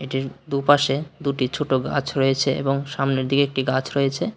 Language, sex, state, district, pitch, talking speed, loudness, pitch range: Bengali, male, Tripura, West Tripura, 135 Hz, 165 wpm, -22 LUFS, 135-140 Hz